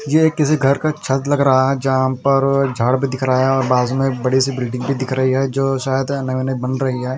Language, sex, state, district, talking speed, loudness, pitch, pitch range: Hindi, male, Punjab, Fazilka, 285 wpm, -17 LUFS, 135 Hz, 130-135 Hz